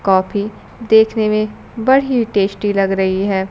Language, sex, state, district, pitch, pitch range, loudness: Hindi, female, Bihar, Kaimur, 205 Hz, 195-220 Hz, -16 LUFS